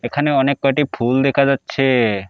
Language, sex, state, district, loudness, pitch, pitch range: Bengali, male, West Bengal, Alipurduar, -17 LUFS, 135 Hz, 125-140 Hz